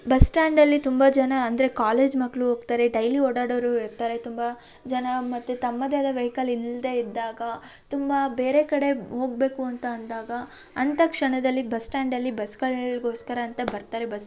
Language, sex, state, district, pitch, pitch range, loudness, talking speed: Kannada, female, Karnataka, Shimoga, 250 Hz, 235-265 Hz, -25 LUFS, 145 wpm